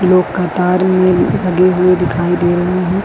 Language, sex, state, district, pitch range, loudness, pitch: Hindi, female, Jharkhand, Ranchi, 175-185 Hz, -13 LUFS, 180 Hz